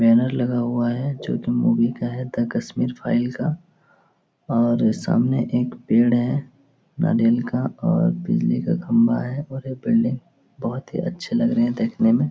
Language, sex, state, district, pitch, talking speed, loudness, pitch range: Hindi, male, Bihar, Jahanabad, 125 Hz, 180 wpm, -22 LUFS, 120-155 Hz